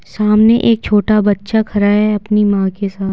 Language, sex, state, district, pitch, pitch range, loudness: Hindi, female, Bihar, Patna, 210 Hz, 200-215 Hz, -13 LUFS